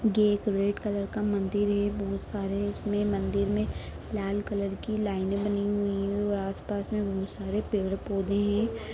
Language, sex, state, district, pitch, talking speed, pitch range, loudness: Hindi, female, Bihar, Darbhanga, 205 Hz, 175 wpm, 195-205 Hz, -29 LUFS